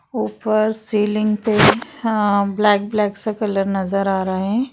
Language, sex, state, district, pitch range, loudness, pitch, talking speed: Hindi, female, Bihar, Darbhanga, 195-215 Hz, -18 LUFS, 210 Hz, 150 wpm